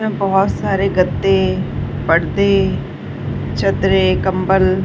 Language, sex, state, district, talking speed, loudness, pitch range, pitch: Hindi, female, Uttar Pradesh, Varanasi, 100 wpm, -16 LUFS, 125-195 Hz, 185 Hz